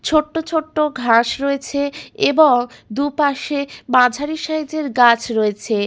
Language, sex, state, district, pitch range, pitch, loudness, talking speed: Bengali, female, West Bengal, Malda, 245-305 Hz, 280 Hz, -18 LUFS, 100 wpm